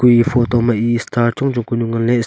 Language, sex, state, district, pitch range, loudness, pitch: Wancho, male, Arunachal Pradesh, Longding, 115-120 Hz, -16 LUFS, 120 Hz